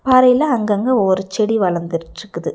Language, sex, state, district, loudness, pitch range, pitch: Tamil, female, Tamil Nadu, Nilgiris, -16 LUFS, 190-250 Hz, 215 Hz